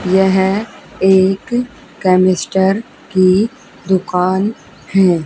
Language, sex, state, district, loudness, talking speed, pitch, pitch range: Hindi, female, Haryana, Charkhi Dadri, -14 LUFS, 70 wpm, 190 Hz, 185-205 Hz